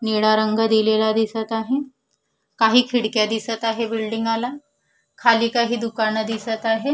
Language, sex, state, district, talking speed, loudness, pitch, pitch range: Marathi, female, Maharashtra, Solapur, 140 wpm, -20 LUFS, 225 Hz, 220-235 Hz